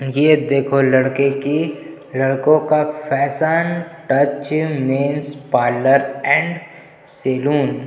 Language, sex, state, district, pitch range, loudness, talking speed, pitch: Hindi, male, Chhattisgarh, Jashpur, 135-155 Hz, -17 LUFS, 100 wpm, 140 Hz